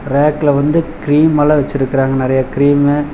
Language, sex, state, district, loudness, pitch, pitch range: Tamil, male, Tamil Nadu, Chennai, -13 LUFS, 145 Hz, 135-150 Hz